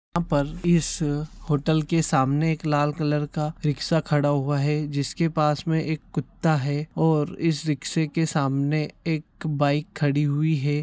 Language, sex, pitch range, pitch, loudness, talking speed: Konkani, male, 145-160 Hz, 150 Hz, -24 LUFS, 165 wpm